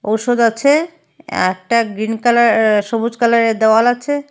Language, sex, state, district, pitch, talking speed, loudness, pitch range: Bengali, female, Assam, Hailakandi, 230 Hz, 125 wpm, -15 LUFS, 220-245 Hz